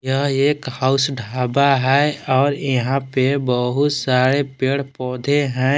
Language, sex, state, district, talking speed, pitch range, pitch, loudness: Hindi, male, Jharkhand, Palamu, 135 wpm, 130-140 Hz, 135 Hz, -18 LUFS